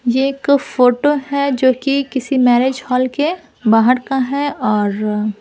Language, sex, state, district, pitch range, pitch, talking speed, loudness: Hindi, female, Bihar, Patna, 245-280 Hz, 260 Hz, 155 wpm, -16 LUFS